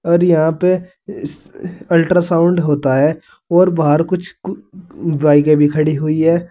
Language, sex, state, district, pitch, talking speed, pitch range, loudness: Hindi, male, Uttar Pradesh, Saharanpur, 170 Hz, 140 wpm, 155-180 Hz, -14 LUFS